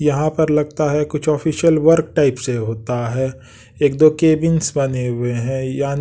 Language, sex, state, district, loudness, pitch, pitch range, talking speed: Hindi, male, Bihar, West Champaran, -17 LUFS, 145 Hz, 125-155 Hz, 170 wpm